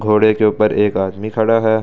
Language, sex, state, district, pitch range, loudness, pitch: Hindi, male, Delhi, New Delhi, 105-110 Hz, -15 LUFS, 110 Hz